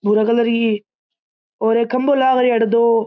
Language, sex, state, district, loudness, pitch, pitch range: Marwari, male, Rajasthan, Churu, -16 LUFS, 230 Hz, 225-245 Hz